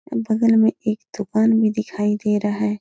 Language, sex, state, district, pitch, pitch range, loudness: Hindi, female, Uttar Pradesh, Etah, 215 Hz, 210-225 Hz, -20 LUFS